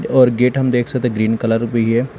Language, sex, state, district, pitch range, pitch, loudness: Hindi, male, Telangana, Hyderabad, 115-130 Hz, 120 Hz, -16 LUFS